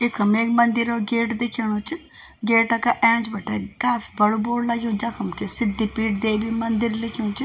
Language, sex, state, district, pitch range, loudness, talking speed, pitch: Garhwali, female, Uttarakhand, Tehri Garhwal, 215-235 Hz, -20 LUFS, 175 wpm, 230 Hz